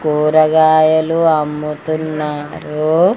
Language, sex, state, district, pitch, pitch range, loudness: Telugu, female, Andhra Pradesh, Guntur, 155 Hz, 150-160 Hz, -14 LUFS